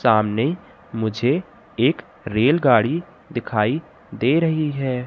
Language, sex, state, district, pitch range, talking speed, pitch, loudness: Hindi, male, Madhya Pradesh, Katni, 110-155 Hz, 95 wpm, 130 Hz, -21 LUFS